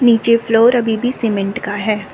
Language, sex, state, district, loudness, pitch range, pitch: Hindi, female, Arunachal Pradesh, Lower Dibang Valley, -15 LUFS, 215-235 Hz, 225 Hz